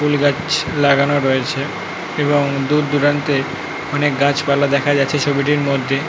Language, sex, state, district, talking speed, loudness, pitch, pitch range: Bengali, male, West Bengal, North 24 Parganas, 140 wpm, -17 LUFS, 145 Hz, 140-145 Hz